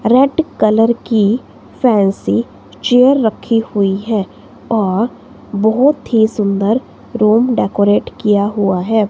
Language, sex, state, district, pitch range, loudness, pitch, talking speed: Hindi, female, Himachal Pradesh, Shimla, 200-235 Hz, -14 LUFS, 215 Hz, 110 wpm